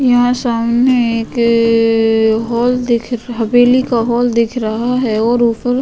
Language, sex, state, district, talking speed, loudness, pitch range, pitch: Hindi, female, Goa, North and South Goa, 165 wpm, -13 LUFS, 230-245 Hz, 235 Hz